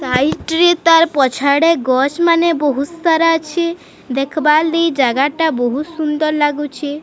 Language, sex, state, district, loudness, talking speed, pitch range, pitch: Odia, female, Odisha, Sambalpur, -15 LUFS, 135 wpm, 275-330 Hz, 305 Hz